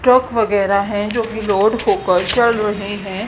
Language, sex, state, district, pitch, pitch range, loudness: Hindi, female, Haryana, Jhajjar, 210 Hz, 200-235 Hz, -17 LUFS